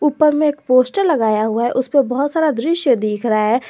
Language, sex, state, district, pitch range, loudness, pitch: Hindi, male, Jharkhand, Garhwa, 230-300 Hz, -16 LUFS, 260 Hz